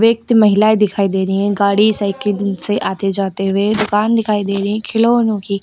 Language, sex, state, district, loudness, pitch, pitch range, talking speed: Hindi, female, Uttar Pradesh, Lucknow, -15 LUFS, 205 Hz, 200-215 Hz, 190 wpm